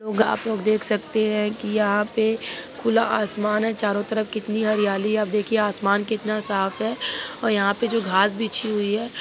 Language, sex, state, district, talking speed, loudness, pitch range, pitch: Hindi, female, Bihar, Begusarai, 200 wpm, -23 LUFS, 210-220 Hz, 215 Hz